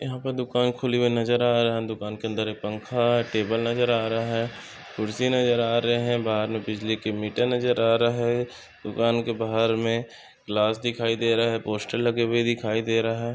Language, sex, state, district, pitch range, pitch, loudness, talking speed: Hindi, male, Maharashtra, Chandrapur, 110-120 Hz, 115 Hz, -25 LUFS, 215 wpm